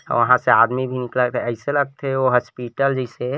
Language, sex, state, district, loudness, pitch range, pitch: Chhattisgarhi, male, Chhattisgarh, Bilaspur, -19 LUFS, 120-135 Hz, 125 Hz